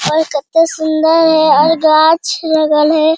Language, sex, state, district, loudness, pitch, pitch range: Hindi, male, Bihar, Jamui, -11 LUFS, 315 Hz, 310-320 Hz